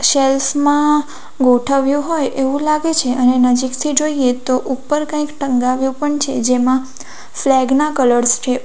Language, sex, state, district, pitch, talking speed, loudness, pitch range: Gujarati, female, Gujarat, Valsad, 270 Hz, 160 wpm, -15 LUFS, 255-295 Hz